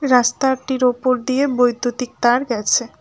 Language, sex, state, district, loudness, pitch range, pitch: Bengali, female, West Bengal, Alipurduar, -18 LUFS, 240-260 Hz, 250 Hz